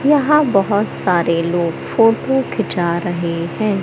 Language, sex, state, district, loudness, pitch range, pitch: Hindi, male, Madhya Pradesh, Katni, -17 LUFS, 170-225 Hz, 195 Hz